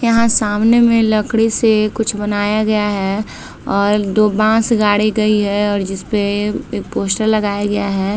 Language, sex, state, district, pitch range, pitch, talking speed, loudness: Hindi, female, Bihar, Saharsa, 205-220 Hz, 210 Hz, 170 wpm, -15 LUFS